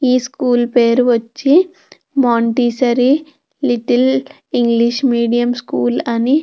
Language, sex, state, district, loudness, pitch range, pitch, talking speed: Telugu, female, Andhra Pradesh, Anantapur, -15 LUFS, 235-265 Hz, 245 Hz, 105 wpm